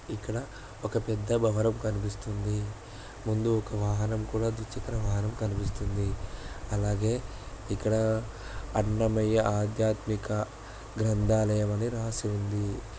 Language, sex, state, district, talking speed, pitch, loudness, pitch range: Telugu, male, Andhra Pradesh, Guntur, 95 wpm, 110 Hz, -30 LUFS, 105-110 Hz